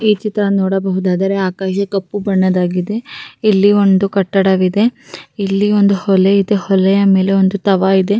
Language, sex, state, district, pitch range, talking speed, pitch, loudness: Kannada, female, Karnataka, Raichur, 190-205 Hz, 140 wpm, 195 Hz, -14 LUFS